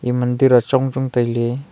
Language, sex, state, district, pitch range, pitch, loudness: Wancho, male, Arunachal Pradesh, Longding, 120-130 Hz, 125 Hz, -17 LUFS